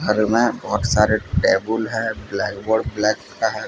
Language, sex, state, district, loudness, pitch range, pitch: Hindi, male, Odisha, Sambalpur, -20 LUFS, 105-110 Hz, 110 Hz